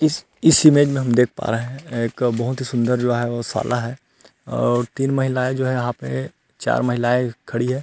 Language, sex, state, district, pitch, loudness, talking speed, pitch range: Hindi, male, Chhattisgarh, Rajnandgaon, 125 Hz, -20 LUFS, 220 wpm, 120-130 Hz